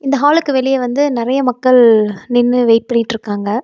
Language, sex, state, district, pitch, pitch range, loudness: Tamil, female, Tamil Nadu, Nilgiris, 245 Hz, 230-270 Hz, -13 LUFS